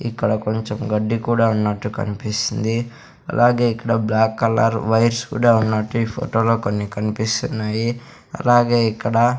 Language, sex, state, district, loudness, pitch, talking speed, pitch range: Telugu, male, Andhra Pradesh, Sri Satya Sai, -19 LUFS, 115 Hz, 130 wpm, 110-120 Hz